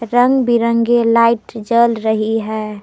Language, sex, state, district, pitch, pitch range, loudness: Hindi, female, Jharkhand, Palamu, 230 Hz, 220-235 Hz, -15 LUFS